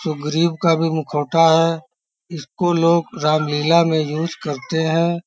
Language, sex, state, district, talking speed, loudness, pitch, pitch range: Hindi, male, Uttar Pradesh, Varanasi, 150 wpm, -18 LUFS, 160 Hz, 155-165 Hz